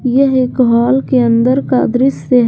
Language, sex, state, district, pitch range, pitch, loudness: Hindi, female, Jharkhand, Garhwa, 245-265 Hz, 255 Hz, -12 LUFS